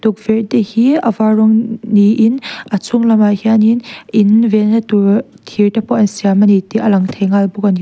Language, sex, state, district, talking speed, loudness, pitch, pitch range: Mizo, female, Mizoram, Aizawl, 205 wpm, -12 LUFS, 215 Hz, 205-225 Hz